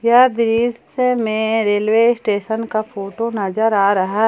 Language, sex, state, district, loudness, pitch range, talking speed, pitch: Hindi, female, Jharkhand, Palamu, -17 LUFS, 210-235 Hz, 140 wpm, 220 Hz